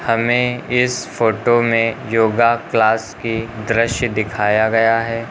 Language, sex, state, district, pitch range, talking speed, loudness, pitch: Hindi, male, Uttar Pradesh, Lucknow, 110-120 Hz, 125 wpm, -17 LUFS, 115 Hz